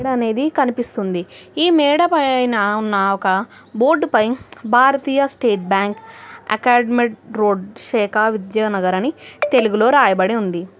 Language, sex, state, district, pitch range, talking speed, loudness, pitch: Telugu, female, Telangana, Hyderabad, 200-260 Hz, 110 wpm, -17 LUFS, 225 Hz